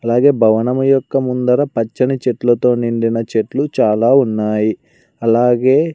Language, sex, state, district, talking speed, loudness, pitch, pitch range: Telugu, male, Andhra Pradesh, Sri Satya Sai, 110 wpm, -15 LUFS, 125 Hz, 115-135 Hz